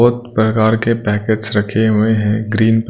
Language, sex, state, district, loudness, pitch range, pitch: Hindi, male, Punjab, Kapurthala, -15 LUFS, 105-110 Hz, 110 Hz